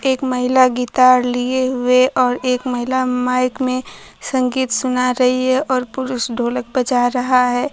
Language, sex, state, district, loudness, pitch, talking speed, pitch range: Hindi, female, Bihar, Kaimur, -17 LUFS, 255 Hz, 155 wpm, 250-255 Hz